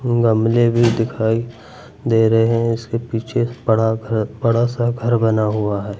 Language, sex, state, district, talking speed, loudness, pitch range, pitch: Hindi, male, Uttar Pradesh, Lucknow, 160 wpm, -18 LUFS, 110-120 Hz, 115 Hz